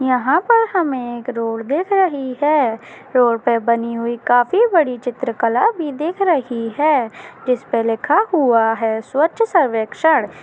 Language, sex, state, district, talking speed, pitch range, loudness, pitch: Hindi, female, Maharashtra, Dhule, 145 wpm, 235-320 Hz, -17 LUFS, 260 Hz